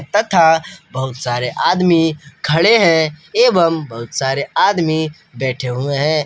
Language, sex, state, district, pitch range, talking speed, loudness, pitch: Hindi, male, Jharkhand, Palamu, 135-165 Hz, 125 wpm, -16 LUFS, 155 Hz